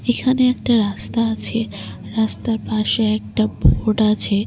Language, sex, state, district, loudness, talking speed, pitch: Bengali, female, West Bengal, Cooch Behar, -19 LUFS, 120 wpm, 115 Hz